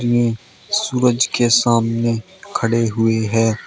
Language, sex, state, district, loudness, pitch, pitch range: Hindi, male, Uttar Pradesh, Shamli, -17 LUFS, 115 Hz, 115-120 Hz